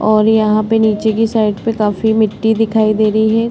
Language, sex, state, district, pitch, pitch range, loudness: Hindi, female, Chhattisgarh, Bastar, 220 Hz, 215-225 Hz, -13 LUFS